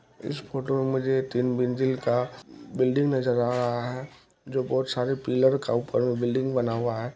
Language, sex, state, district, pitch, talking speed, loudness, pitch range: Maithili, male, Bihar, Kishanganj, 125 Hz, 195 wpm, -26 LUFS, 120-130 Hz